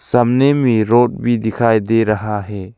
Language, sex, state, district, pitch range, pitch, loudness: Hindi, male, Arunachal Pradesh, Lower Dibang Valley, 110-120 Hz, 115 Hz, -15 LUFS